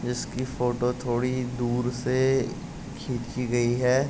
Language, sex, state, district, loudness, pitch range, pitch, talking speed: Hindi, male, Uttar Pradesh, Jalaun, -27 LUFS, 120-130 Hz, 125 Hz, 130 wpm